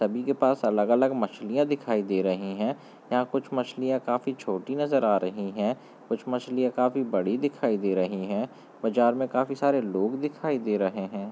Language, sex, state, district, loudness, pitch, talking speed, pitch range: Hindi, male, Chhattisgarh, Balrampur, -27 LUFS, 125 Hz, 190 wpm, 110-135 Hz